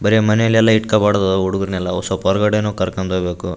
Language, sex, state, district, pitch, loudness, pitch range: Kannada, male, Karnataka, Raichur, 95 Hz, -16 LUFS, 95-105 Hz